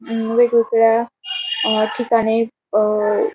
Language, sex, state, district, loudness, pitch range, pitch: Marathi, female, Maharashtra, Pune, -17 LUFS, 220-235 Hz, 230 Hz